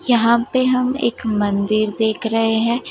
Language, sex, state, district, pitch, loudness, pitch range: Hindi, female, Gujarat, Gandhinagar, 225 Hz, -17 LUFS, 215-240 Hz